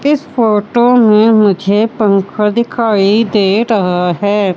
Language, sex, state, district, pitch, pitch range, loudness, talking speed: Hindi, female, Madhya Pradesh, Katni, 215 Hz, 200-230 Hz, -11 LUFS, 120 wpm